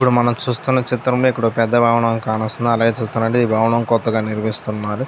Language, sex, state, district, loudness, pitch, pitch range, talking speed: Telugu, male, Andhra Pradesh, Anantapur, -17 LUFS, 115 Hz, 110-120 Hz, 190 wpm